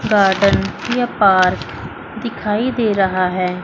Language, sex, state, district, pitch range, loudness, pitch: Hindi, female, Chandigarh, Chandigarh, 185-230 Hz, -16 LUFS, 200 Hz